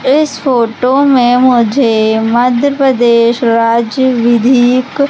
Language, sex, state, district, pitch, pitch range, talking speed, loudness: Hindi, female, Madhya Pradesh, Umaria, 245 Hz, 235-265 Hz, 95 wpm, -10 LUFS